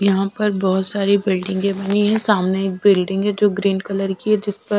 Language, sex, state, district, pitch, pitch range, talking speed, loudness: Hindi, female, Bihar, West Champaran, 200 Hz, 195-205 Hz, 225 wpm, -18 LUFS